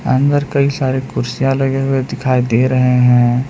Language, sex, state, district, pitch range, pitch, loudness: Hindi, male, Jharkhand, Palamu, 125-135 Hz, 130 Hz, -14 LUFS